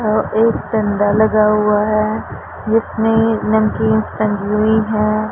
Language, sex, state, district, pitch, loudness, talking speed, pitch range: Hindi, female, Punjab, Pathankot, 215 Hz, -15 LUFS, 125 wpm, 210-220 Hz